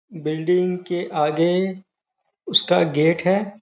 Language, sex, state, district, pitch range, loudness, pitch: Hindi, male, Uttar Pradesh, Gorakhpur, 165-190 Hz, -20 LUFS, 180 Hz